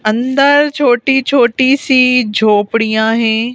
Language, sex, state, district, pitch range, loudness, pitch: Hindi, female, Madhya Pradesh, Bhopal, 220-270 Hz, -11 LUFS, 245 Hz